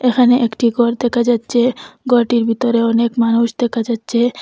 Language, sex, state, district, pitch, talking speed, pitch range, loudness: Bengali, female, Assam, Hailakandi, 240 Hz, 165 wpm, 235-245 Hz, -15 LUFS